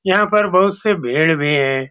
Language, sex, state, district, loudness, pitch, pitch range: Hindi, male, Bihar, Saran, -15 LUFS, 185 Hz, 145-205 Hz